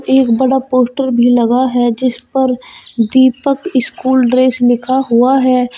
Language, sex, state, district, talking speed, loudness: Hindi, female, Uttar Pradesh, Shamli, 145 wpm, -12 LUFS